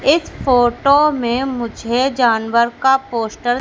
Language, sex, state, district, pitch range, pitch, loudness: Hindi, female, Madhya Pradesh, Katni, 235-270 Hz, 245 Hz, -16 LUFS